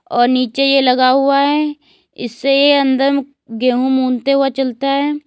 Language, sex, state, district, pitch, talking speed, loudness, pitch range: Hindi, female, Uttar Pradesh, Lalitpur, 275 Hz, 160 wpm, -14 LUFS, 255-280 Hz